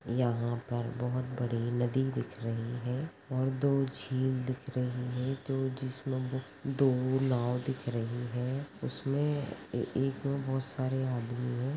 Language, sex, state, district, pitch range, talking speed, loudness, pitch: Hindi, female, Jharkhand, Sahebganj, 125-135 Hz, 145 wpm, -33 LUFS, 130 Hz